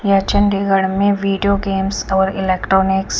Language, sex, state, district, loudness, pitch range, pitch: Hindi, female, Chandigarh, Chandigarh, -16 LUFS, 190-200 Hz, 195 Hz